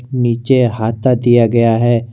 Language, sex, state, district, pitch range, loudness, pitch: Hindi, male, Jharkhand, Garhwa, 115-125 Hz, -13 LUFS, 120 Hz